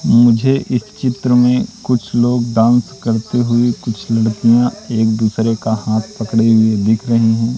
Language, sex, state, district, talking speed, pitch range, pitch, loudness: Hindi, male, Madhya Pradesh, Katni, 160 wpm, 110-120 Hz, 115 Hz, -15 LUFS